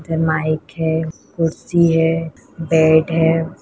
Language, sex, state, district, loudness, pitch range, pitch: Hindi, female, Uttar Pradesh, Deoria, -17 LUFS, 160-165 Hz, 160 Hz